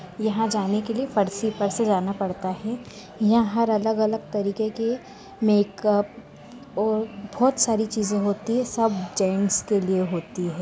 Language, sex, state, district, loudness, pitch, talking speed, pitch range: Hindi, female, Chhattisgarh, Bastar, -24 LUFS, 210 Hz, 165 wpm, 200-225 Hz